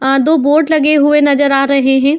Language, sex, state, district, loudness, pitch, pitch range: Hindi, female, Uttar Pradesh, Jyotiba Phule Nagar, -11 LUFS, 285 Hz, 275-300 Hz